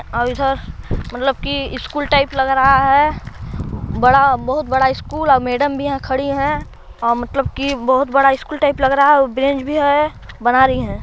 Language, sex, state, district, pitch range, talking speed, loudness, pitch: Hindi, female, Chhattisgarh, Balrampur, 260-280 Hz, 190 wpm, -16 LUFS, 270 Hz